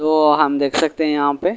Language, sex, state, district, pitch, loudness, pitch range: Hindi, male, Delhi, New Delhi, 150 Hz, -17 LUFS, 145-155 Hz